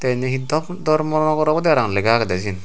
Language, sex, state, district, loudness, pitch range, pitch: Chakma, male, Tripura, Unakoti, -19 LUFS, 115-155 Hz, 135 Hz